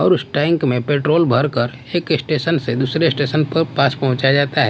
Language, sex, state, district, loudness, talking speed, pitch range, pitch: Hindi, male, Bihar, West Champaran, -17 LUFS, 205 wpm, 130-160 Hz, 145 Hz